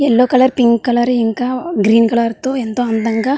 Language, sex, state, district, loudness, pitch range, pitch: Telugu, female, Andhra Pradesh, Visakhapatnam, -14 LUFS, 230-255 Hz, 240 Hz